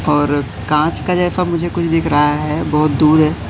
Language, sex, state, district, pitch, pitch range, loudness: Hindi, male, Madhya Pradesh, Katni, 155 Hz, 150-165 Hz, -15 LUFS